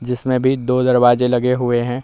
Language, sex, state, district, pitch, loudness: Hindi, male, Bihar, Vaishali, 125 Hz, -16 LUFS